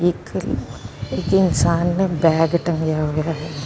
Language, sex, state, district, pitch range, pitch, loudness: Punjabi, female, Karnataka, Bangalore, 155-175 Hz, 165 Hz, -20 LUFS